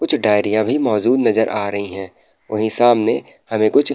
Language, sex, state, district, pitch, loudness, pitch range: Hindi, male, Uttar Pradesh, Muzaffarnagar, 110 Hz, -17 LUFS, 105-120 Hz